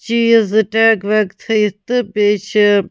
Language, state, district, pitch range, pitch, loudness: Kashmiri, Punjab, Kapurthala, 205-225 Hz, 215 Hz, -14 LUFS